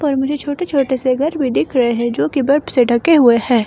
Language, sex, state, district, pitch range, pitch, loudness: Hindi, female, Himachal Pradesh, Shimla, 245-290 Hz, 270 Hz, -15 LUFS